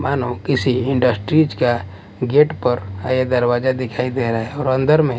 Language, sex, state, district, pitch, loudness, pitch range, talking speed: Hindi, male, Bihar, West Champaran, 130 Hz, -18 LUFS, 120-135 Hz, 175 wpm